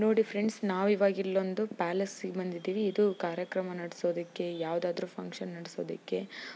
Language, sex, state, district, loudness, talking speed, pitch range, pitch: Kannada, female, Karnataka, Chamarajanagar, -33 LUFS, 120 wpm, 175-205 Hz, 190 Hz